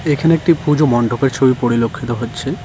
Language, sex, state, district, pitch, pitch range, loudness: Bengali, male, West Bengal, Cooch Behar, 135 Hz, 120-150 Hz, -15 LUFS